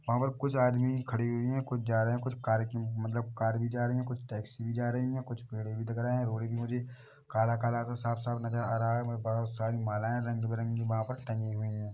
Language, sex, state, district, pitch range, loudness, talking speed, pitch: Hindi, male, Chhattisgarh, Bilaspur, 115-125 Hz, -33 LUFS, 250 wpm, 115 Hz